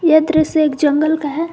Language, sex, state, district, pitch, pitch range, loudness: Hindi, female, Jharkhand, Garhwa, 315 Hz, 300-320 Hz, -15 LUFS